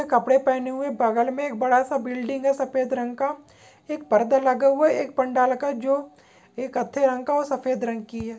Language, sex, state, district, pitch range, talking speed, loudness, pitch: Hindi, male, Maharashtra, Pune, 250-275 Hz, 215 wpm, -23 LUFS, 260 Hz